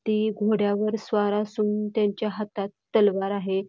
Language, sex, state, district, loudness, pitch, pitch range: Marathi, female, Karnataka, Belgaum, -25 LUFS, 210 Hz, 205-215 Hz